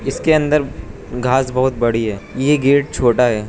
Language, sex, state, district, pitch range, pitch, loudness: Hindi, male, Arunachal Pradesh, Lower Dibang Valley, 120-140 Hz, 130 Hz, -16 LUFS